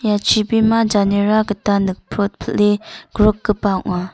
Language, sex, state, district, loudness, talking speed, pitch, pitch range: Garo, female, Meghalaya, North Garo Hills, -17 LUFS, 100 wpm, 210 Hz, 200-215 Hz